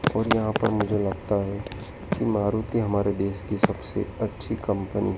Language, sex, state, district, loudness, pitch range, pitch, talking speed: Hindi, male, Madhya Pradesh, Dhar, -26 LUFS, 100-110 Hz, 105 Hz, 175 wpm